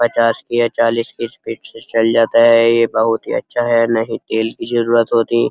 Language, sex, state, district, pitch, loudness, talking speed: Hindi, male, Uttar Pradesh, Muzaffarnagar, 115 Hz, -15 LUFS, 230 wpm